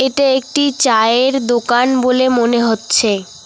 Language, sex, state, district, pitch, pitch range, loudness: Bengali, female, West Bengal, Cooch Behar, 245 Hz, 230-265 Hz, -14 LUFS